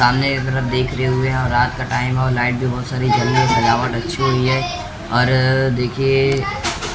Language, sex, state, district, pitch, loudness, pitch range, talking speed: Hindi, male, Maharashtra, Mumbai Suburban, 130 Hz, -18 LUFS, 120-130 Hz, 215 wpm